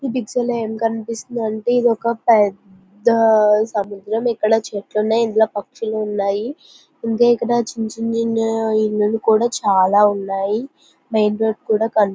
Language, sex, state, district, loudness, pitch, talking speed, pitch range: Telugu, female, Andhra Pradesh, Visakhapatnam, -18 LUFS, 220 Hz, 135 wpm, 210-230 Hz